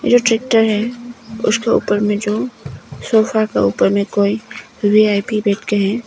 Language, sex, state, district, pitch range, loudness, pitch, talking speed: Hindi, female, Arunachal Pradesh, Papum Pare, 205-230 Hz, -16 LUFS, 215 Hz, 160 wpm